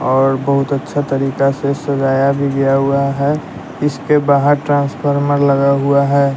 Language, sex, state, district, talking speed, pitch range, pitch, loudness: Hindi, male, Bihar, West Champaran, 150 wpm, 135-145 Hz, 140 Hz, -15 LUFS